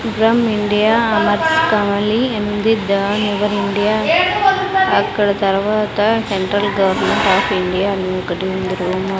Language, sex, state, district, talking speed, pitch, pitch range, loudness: Telugu, female, Andhra Pradesh, Sri Satya Sai, 115 wpm, 205 Hz, 195-220 Hz, -16 LUFS